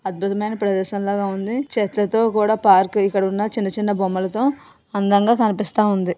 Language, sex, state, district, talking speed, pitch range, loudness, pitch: Telugu, female, Andhra Pradesh, Visakhapatnam, 155 wpm, 195-215 Hz, -19 LUFS, 205 Hz